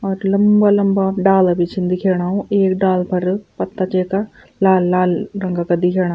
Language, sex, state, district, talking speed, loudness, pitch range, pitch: Garhwali, female, Uttarakhand, Tehri Garhwal, 155 wpm, -16 LUFS, 180-195 Hz, 190 Hz